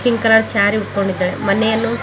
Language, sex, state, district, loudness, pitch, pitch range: Kannada, female, Karnataka, Koppal, -16 LUFS, 220 Hz, 200-225 Hz